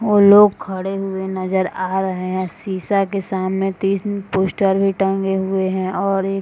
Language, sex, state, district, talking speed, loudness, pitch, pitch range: Hindi, female, Bihar, Madhepura, 180 wpm, -18 LUFS, 195 Hz, 190-195 Hz